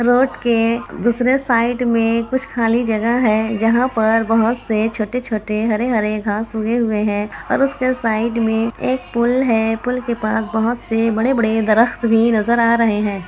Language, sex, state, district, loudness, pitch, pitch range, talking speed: Hindi, female, Bihar, Kishanganj, -17 LUFS, 230 Hz, 220-240 Hz, 175 wpm